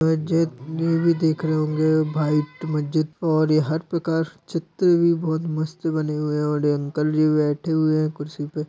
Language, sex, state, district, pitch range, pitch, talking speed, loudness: Hindi, female, Uttar Pradesh, Jalaun, 150-165 Hz, 155 Hz, 185 wpm, -22 LUFS